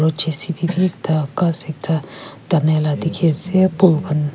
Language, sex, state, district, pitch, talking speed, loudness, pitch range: Nagamese, female, Nagaland, Kohima, 160 Hz, 180 wpm, -18 LUFS, 155-175 Hz